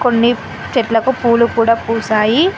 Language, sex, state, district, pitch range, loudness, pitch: Telugu, female, Telangana, Mahabubabad, 230-245 Hz, -14 LUFS, 235 Hz